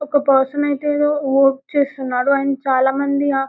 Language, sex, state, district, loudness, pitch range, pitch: Telugu, female, Telangana, Karimnagar, -17 LUFS, 270-285 Hz, 275 Hz